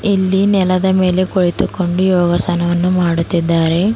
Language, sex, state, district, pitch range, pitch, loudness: Kannada, female, Karnataka, Bidar, 175-190 Hz, 180 Hz, -14 LUFS